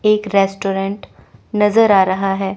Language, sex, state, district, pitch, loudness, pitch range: Hindi, female, Chandigarh, Chandigarh, 195 Hz, -16 LUFS, 195-210 Hz